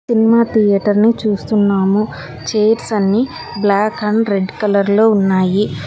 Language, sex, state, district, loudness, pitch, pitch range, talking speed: Telugu, female, Telangana, Hyderabad, -14 LUFS, 210 Hz, 200-220 Hz, 110 wpm